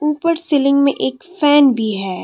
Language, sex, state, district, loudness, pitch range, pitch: Hindi, female, Assam, Kamrup Metropolitan, -15 LUFS, 270-305 Hz, 285 Hz